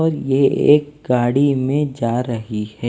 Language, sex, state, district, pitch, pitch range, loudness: Hindi, male, Maharashtra, Mumbai Suburban, 135 Hz, 120-145 Hz, -17 LUFS